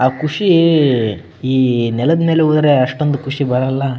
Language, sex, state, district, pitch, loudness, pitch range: Kannada, male, Karnataka, Bellary, 135 Hz, -14 LUFS, 130-155 Hz